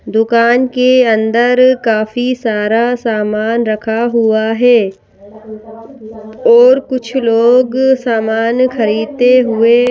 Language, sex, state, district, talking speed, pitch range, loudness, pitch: Hindi, female, Madhya Pradesh, Bhopal, 90 wpm, 220-250 Hz, -11 LUFS, 230 Hz